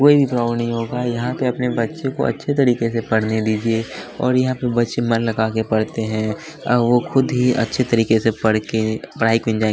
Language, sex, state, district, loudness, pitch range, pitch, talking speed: Hindi, male, Bihar, West Champaran, -19 LUFS, 110-125 Hz, 115 Hz, 230 wpm